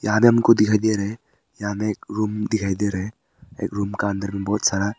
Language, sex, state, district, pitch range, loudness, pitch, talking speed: Hindi, male, Arunachal Pradesh, Papum Pare, 100-110 Hz, -22 LUFS, 105 Hz, 255 wpm